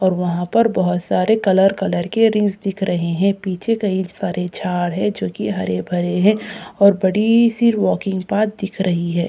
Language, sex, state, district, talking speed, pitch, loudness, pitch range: Hindi, female, Bihar, Katihar, 185 wpm, 195 Hz, -18 LUFS, 180-210 Hz